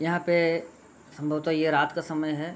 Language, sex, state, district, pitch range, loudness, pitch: Hindi, male, Bihar, Gopalganj, 150-170 Hz, -26 LUFS, 160 Hz